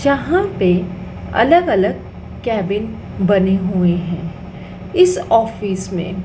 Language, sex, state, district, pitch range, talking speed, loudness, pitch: Hindi, female, Madhya Pradesh, Dhar, 180-230 Hz, 105 wpm, -17 LUFS, 195 Hz